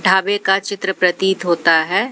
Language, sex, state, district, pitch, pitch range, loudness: Hindi, female, Haryana, Jhajjar, 190 Hz, 180-195 Hz, -16 LUFS